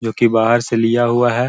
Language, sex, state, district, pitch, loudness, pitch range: Hindi, male, Bihar, Gaya, 120 Hz, -15 LUFS, 115-120 Hz